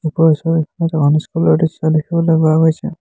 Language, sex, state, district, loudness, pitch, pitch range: Assamese, male, Assam, Hailakandi, -15 LUFS, 160 Hz, 155-165 Hz